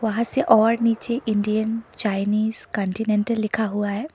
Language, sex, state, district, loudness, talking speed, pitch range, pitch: Hindi, female, Sikkim, Gangtok, -22 LUFS, 145 wpm, 210-230 Hz, 220 Hz